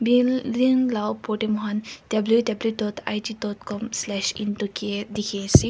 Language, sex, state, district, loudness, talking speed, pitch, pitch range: Nagamese, female, Nagaland, Kohima, -24 LUFS, 160 wpm, 215 Hz, 210-230 Hz